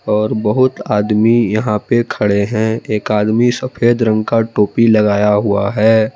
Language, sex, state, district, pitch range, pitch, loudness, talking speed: Hindi, male, Jharkhand, Palamu, 105-115 Hz, 110 Hz, -14 LUFS, 155 wpm